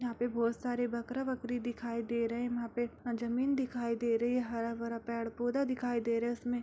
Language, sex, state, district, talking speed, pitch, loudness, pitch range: Hindi, female, Bihar, Purnia, 200 wpm, 240 Hz, -35 LUFS, 235-245 Hz